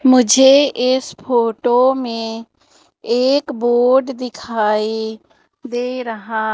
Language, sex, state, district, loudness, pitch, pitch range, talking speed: Hindi, female, Madhya Pradesh, Umaria, -16 LUFS, 245 Hz, 225-260 Hz, 80 wpm